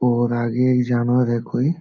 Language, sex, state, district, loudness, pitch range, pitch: Hindi, male, Bihar, Jamui, -19 LUFS, 120-125 Hz, 120 Hz